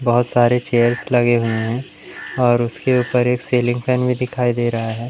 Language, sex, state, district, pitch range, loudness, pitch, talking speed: Hindi, male, Madhya Pradesh, Umaria, 120-125 Hz, -18 LUFS, 120 Hz, 200 wpm